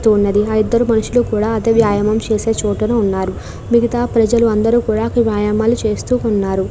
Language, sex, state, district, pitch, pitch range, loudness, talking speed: Telugu, female, Andhra Pradesh, Krishna, 220 Hz, 210-230 Hz, -15 LUFS, 145 wpm